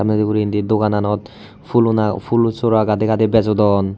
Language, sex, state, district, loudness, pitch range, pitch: Chakma, male, Tripura, Unakoti, -17 LUFS, 105-110 Hz, 105 Hz